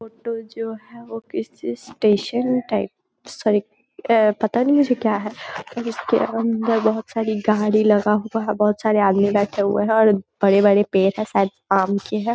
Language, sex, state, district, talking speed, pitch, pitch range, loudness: Hindi, female, Bihar, Muzaffarpur, 180 wpm, 215 Hz, 205-225 Hz, -20 LUFS